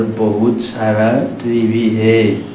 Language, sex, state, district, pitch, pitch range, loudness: Hindi, male, Arunachal Pradesh, Lower Dibang Valley, 110 Hz, 110-115 Hz, -14 LUFS